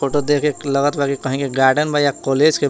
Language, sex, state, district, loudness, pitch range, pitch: Bhojpuri, male, Jharkhand, Palamu, -17 LUFS, 140-145 Hz, 140 Hz